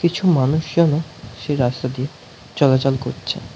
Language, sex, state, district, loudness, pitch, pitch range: Bengali, male, West Bengal, North 24 Parganas, -19 LUFS, 135 Hz, 130-155 Hz